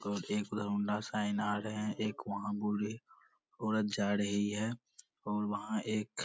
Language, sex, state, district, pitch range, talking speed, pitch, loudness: Hindi, male, Bihar, Purnia, 105-110 Hz, 175 wpm, 105 Hz, -36 LUFS